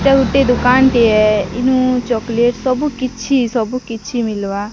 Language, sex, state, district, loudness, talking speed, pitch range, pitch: Odia, female, Odisha, Sambalpur, -15 LUFS, 140 wpm, 225-255 Hz, 245 Hz